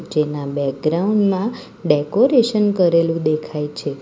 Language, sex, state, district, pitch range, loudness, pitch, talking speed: Gujarati, female, Gujarat, Valsad, 150-205 Hz, -18 LUFS, 165 Hz, 105 wpm